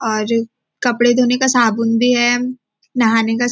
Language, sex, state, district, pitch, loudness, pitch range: Hindi, female, Maharashtra, Nagpur, 240 Hz, -15 LUFS, 225-245 Hz